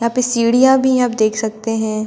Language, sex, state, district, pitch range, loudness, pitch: Hindi, female, Delhi, New Delhi, 220-250 Hz, -15 LUFS, 235 Hz